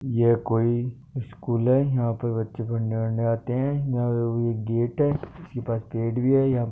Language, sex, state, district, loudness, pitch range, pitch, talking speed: Marwari, male, Rajasthan, Nagaur, -25 LUFS, 115-130 Hz, 120 Hz, 190 wpm